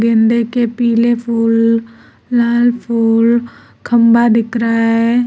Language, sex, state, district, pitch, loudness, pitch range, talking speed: Hindi, female, Uttar Pradesh, Lucknow, 230 Hz, -13 LUFS, 230-235 Hz, 115 wpm